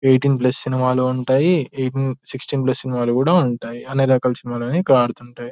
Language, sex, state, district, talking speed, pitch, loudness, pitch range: Telugu, male, Telangana, Nalgonda, 150 wpm, 130 Hz, -19 LUFS, 125-135 Hz